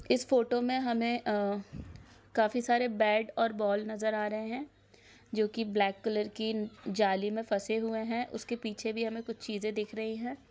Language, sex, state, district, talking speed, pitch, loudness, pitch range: Hindi, female, Bihar, Araria, 190 wpm, 220 Hz, -32 LUFS, 210-235 Hz